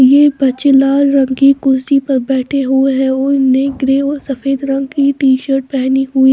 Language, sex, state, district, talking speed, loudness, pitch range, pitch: Hindi, female, Maharashtra, Washim, 200 wpm, -12 LUFS, 265-275 Hz, 270 Hz